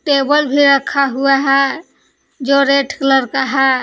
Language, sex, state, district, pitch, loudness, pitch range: Hindi, female, Jharkhand, Palamu, 275 Hz, -13 LUFS, 270-280 Hz